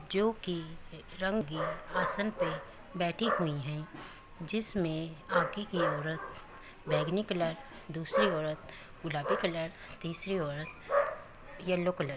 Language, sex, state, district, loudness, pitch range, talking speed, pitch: Hindi, male, Uttar Pradesh, Muzaffarnagar, -34 LUFS, 155-195 Hz, 115 wpm, 170 Hz